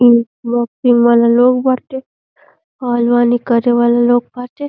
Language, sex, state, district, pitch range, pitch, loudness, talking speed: Hindi, female, Uttar Pradesh, Deoria, 235-250 Hz, 240 Hz, -13 LUFS, 130 wpm